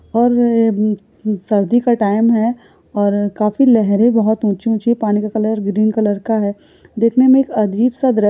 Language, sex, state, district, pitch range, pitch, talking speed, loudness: Hindi, female, Uttar Pradesh, Etah, 210-235 Hz, 220 Hz, 195 wpm, -15 LUFS